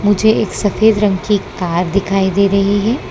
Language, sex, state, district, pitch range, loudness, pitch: Hindi, female, Gujarat, Valsad, 195-210 Hz, -14 LUFS, 205 Hz